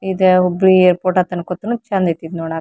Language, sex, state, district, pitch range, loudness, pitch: Kannada, female, Karnataka, Dharwad, 175-190 Hz, -15 LUFS, 185 Hz